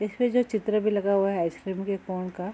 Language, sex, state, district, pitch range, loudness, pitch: Hindi, female, Bihar, Saharsa, 190-215 Hz, -27 LUFS, 200 Hz